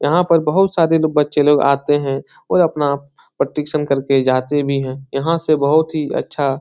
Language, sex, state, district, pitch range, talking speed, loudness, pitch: Hindi, male, Bihar, Jahanabad, 140-155 Hz, 200 wpm, -17 LUFS, 145 Hz